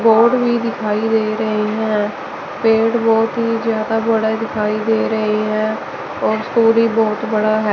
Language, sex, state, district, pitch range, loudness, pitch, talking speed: Hindi, male, Chandigarh, Chandigarh, 215-230 Hz, -17 LUFS, 220 Hz, 150 wpm